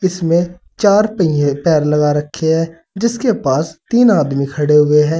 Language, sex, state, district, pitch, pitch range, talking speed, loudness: Hindi, male, Uttar Pradesh, Saharanpur, 165 Hz, 150-185 Hz, 160 wpm, -14 LUFS